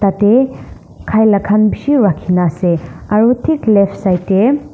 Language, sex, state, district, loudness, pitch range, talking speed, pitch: Nagamese, female, Nagaland, Dimapur, -13 LUFS, 185-225 Hz, 165 wpm, 205 Hz